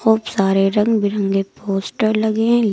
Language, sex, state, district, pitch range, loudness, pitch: Hindi, female, Uttar Pradesh, Lucknow, 195-220 Hz, -18 LUFS, 210 Hz